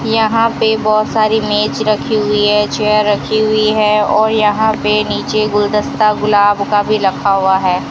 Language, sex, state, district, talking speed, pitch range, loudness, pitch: Hindi, female, Rajasthan, Bikaner, 175 wpm, 205-215 Hz, -13 LUFS, 210 Hz